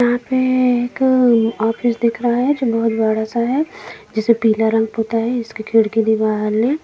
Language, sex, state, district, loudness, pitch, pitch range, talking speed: Hindi, female, Jharkhand, Jamtara, -17 LUFS, 230 Hz, 225-245 Hz, 185 wpm